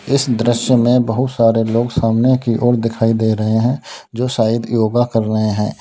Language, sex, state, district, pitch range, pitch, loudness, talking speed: Hindi, male, Uttar Pradesh, Lalitpur, 115-125 Hz, 115 Hz, -15 LUFS, 195 wpm